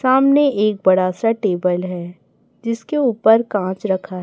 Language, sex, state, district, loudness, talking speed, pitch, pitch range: Hindi, female, Chhattisgarh, Raipur, -17 LUFS, 140 wpm, 205 Hz, 185-235 Hz